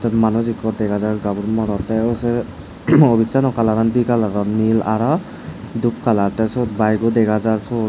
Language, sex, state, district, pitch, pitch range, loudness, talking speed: Chakma, male, Tripura, Dhalai, 110 Hz, 110-115 Hz, -18 LUFS, 205 wpm